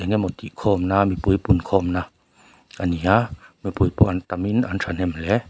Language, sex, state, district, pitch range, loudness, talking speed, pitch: Mizo, male, Mizoram, Aizawl, 90-100 Hz, -22 LUFS, 185 wpm, 95 Hz